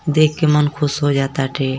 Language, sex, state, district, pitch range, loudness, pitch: Hindi, female, Uttar Pradesh, Ghazipur, 135-150 Hz, -17 LUFS, 145 Hz